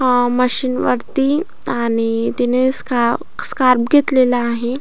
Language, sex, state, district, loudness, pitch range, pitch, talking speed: Marathi, female, Maharashtra, Aurangabad, -16 LUFS, 240-260 Hz, 250 Hz, 110 wpm